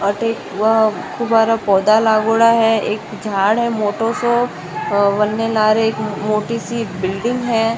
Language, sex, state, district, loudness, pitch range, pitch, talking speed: Rajasthani, female, Rajasthan, Nagaur, -16 LUFS, 210-225 Hz, 220 Hz, 140 wpm